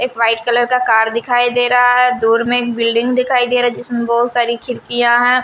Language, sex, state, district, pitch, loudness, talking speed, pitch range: Hindi, female, Maharashtra, Washim, 240 Hz, -14 LUFS, 245 wpm, 235-245 Hz